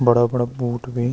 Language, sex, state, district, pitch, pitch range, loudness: Garhwali, male, Uttarakhand, Uttarkashi, 120 Hz, 120-125 Hz, -21 LUFS